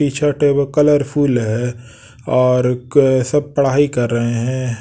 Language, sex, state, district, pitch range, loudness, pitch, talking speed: Hindi, male, Bihar, West Champaran, 120-145 Hz, -16 LUFS, 130 Hz, 150 wpm